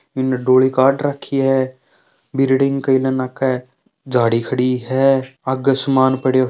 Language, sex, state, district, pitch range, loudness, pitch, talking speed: Marwari, male, Rajasthan, Churu, 130-135 Hz, -17 LUFS, 130 Hz, 150 wpm